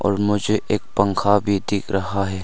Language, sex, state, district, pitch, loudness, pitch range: Hindi, male, Arunachal Pradesh, Longding, 100 Hz, -20 LUFS, 95-105 Hz